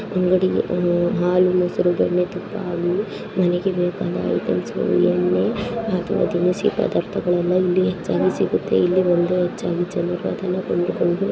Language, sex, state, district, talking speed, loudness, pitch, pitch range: Kannada, female, Karnataka, Shimoga, 100 wpm, -20 LUFS, 180 Hz, 175-185 Hz